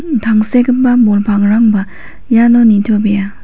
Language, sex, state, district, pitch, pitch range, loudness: Garo, female, Meghalaya, West Garo Hills, 220 Hz, 205-240 Hz, -10 LUFS